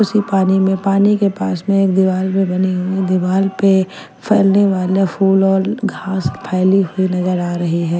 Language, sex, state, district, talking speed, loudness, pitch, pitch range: Hindi, female, Punjab, Kapurthala, 185 wpm, -15 LUFS, 190 Hz, 185-195 Hz